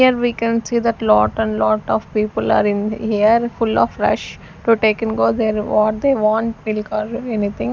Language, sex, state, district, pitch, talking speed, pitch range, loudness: English, female, Chandigarh, Chandigarh, 215 Hz, 210 wpm, 210-230 Hz, -18 LUFS